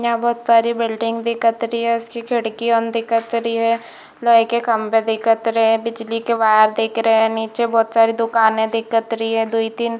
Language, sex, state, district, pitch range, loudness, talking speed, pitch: Hindi, female, Chhattisgarh, Bilaspur, 225-230 Hz, -18 LUFS, 205 wpm, 230 Hz